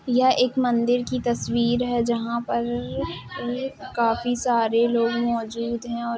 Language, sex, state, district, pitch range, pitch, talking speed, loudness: Hindi, female, Uttar Pradesh, Jalaun, 235-245 Hz, 235 Hz, 165 wpm, -23 LUFS